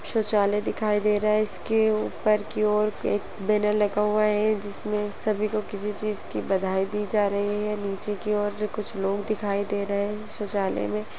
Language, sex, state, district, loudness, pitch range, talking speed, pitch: Hindi, female, Chhattisgarh, Sarguja, -25 LUFS, 205-215 Hz, 195 wpm, 210 Hz